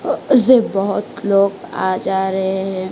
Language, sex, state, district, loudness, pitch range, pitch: Hindi, female, Odisha, Malkangiri, -16 LUFS, 190-205 Hz, 195 Hz